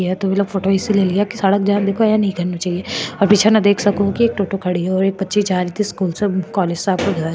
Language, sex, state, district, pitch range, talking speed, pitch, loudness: Marwari, female, Rajasthan, Churu, 185-205 Hz, 100 wpm, 195 Hz, -17 LUFS